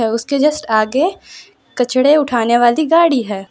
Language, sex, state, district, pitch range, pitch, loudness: Hindi, female, Gujarat, Valsad, 230-300 Hz, 255 Hz, -14 LUFS